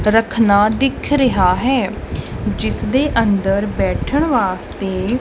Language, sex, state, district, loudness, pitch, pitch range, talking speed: Punjabi, male, Punjab, Kapurthala, -17 LUFS, 225 Hz, 200-265 Hz, 115 wpm